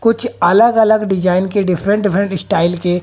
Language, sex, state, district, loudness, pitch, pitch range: Hindi, female, Haryana, Jhajjar, -14 LUFS, 200 Hz, 180-215 Hz